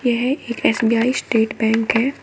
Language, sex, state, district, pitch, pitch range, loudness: Hindi, female, Uttar Pradesh, Shamli, 235 Hz, 225-250 Hz, -18 LUFS